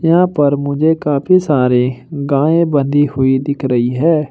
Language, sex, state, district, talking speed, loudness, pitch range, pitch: Hindi, male, Uttar Pradesh, Shamli, 155 wpm, -14 LUFS, 130-160 Hz, 145 Hz